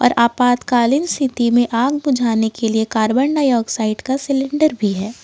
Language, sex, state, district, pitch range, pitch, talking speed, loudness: Hindi, female, Jharkhand, Ranchi, 225-275 Hz, 245 Hz, 160 wpm, -17 LUFS